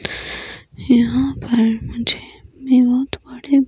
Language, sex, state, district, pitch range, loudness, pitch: Hindi, female, Himachal Pradesh, Shimla, 235-265 Hz, -18 LUFS, 255 Hz